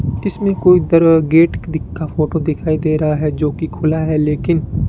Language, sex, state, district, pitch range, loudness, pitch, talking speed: Hindi, male, Rajasthan, Bikaner, 155-165 Hz, -15 LUFS, 160 Hz, 170 wpm